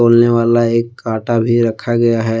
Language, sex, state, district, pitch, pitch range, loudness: Hindi, male, Jharkhand, Deoghar, 115 Hz, 115-120 Hz, -14 LUFS